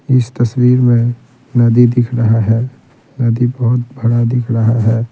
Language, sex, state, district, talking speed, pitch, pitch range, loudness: Hindi, male, Bihar, Patna, 150 wpm, 120 Hz, 115-125 Hz, -13 LUFS